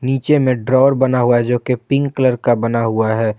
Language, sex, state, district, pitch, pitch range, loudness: Hindi, male, Jharkhand, Garhwa, 125 Hz, 115-130 Hz, -15 LUFS